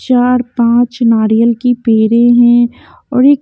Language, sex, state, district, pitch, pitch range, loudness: Hindi, female, Haryana, Jhajjar, 240 Hz, 235-250 Hz, -10 LUFS